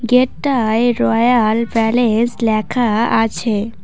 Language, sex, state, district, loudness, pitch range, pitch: Bengali, female, West Bengal, Cooch Behar, -15 LUFS, 220-245 Hz, 230 Hz